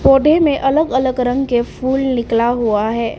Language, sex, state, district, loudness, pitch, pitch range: Hindi, female, Arunachal Pradesh, Papum Pare, -15 LUFS, 255 Hz, 235-270 Hz